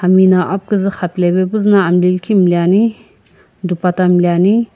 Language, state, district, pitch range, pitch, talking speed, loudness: Sumi, Nagaland, Kohima, 180-200 Hz, 185 Hz, 125 wpm, -13 LUFS